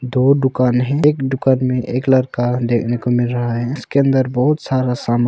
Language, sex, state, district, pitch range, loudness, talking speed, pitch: Hindi, male, Arunachal Pradesh, Longding, 120-130 Hz, -17 LUFS, 205 wpm, 125 Hz